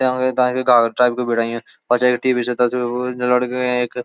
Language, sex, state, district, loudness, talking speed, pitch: Garhwali, male, Uttarakhand, Uttarkashi, -18 LUFS, 220 wpm, 125 Hz